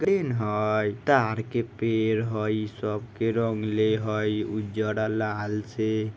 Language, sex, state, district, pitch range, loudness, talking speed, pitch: Maithili, male, Bihar, Vaishali, 105-115 Hz, -27 LUFS, 135 wpm, 110 Hz